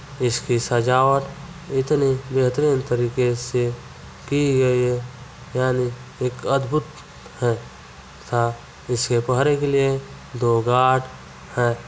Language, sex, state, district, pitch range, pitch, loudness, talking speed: Hindi, male, Bihar, Saharsa, 120-135 Hz, 125 Hz, -21 LUFS, 105 wpm